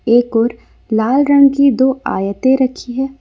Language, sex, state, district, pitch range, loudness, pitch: Hindi, female, Jharkhand, Ranchi, 230-270 Hz, -14 LUFS, 260 Hz